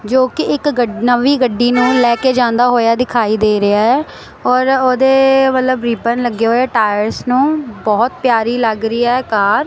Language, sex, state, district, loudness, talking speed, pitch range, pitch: Punjabi, female, Punjab, Kapurthala, -13 LUFS, 190 wpm, 230-255 Hz, 245 Hz